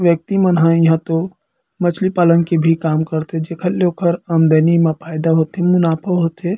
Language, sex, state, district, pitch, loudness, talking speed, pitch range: Chhattisgarhi, male, Chhattisgarh, Kabirdham, 170 Hz, -16 LUFS, 180 wpm, 160-180 Hz